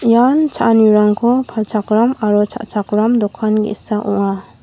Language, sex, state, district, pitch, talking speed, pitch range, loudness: Garo, female, Meghalaya, West Garo Hills, 215 Hz, 105 wpm, 210-235 Hz, -14 LUFS